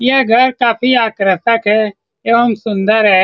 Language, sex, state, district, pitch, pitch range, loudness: Hindi, male, Bihar, Saran, 225 Hz, 210-240 Hz, -12 LUFS